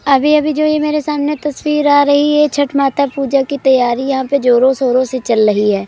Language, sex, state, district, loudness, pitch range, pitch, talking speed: Hindi, female, Uttar Pradesh, Budaun, -13 LUFS, 260-295 Hz, 280 Hz, 255 wpm